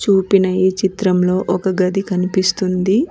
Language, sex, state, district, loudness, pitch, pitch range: Telugu, female, Telangana, Mahabubabad, -16 LUFS, 185 Hz, 185-195 Hz